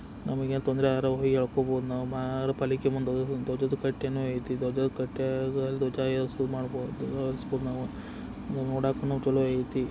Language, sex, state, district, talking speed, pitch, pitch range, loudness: Kannada, male, Karnataka, Belgaum, 165 wpm, 130 Hz, 130-135 Hz, -30 LUFS